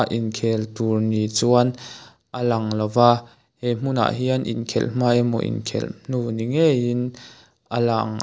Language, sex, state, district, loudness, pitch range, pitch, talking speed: Mizo, male, Mizoram, Aizawl, -22 LUFS, 115-125 Hz, 120 Hz, 145 wpm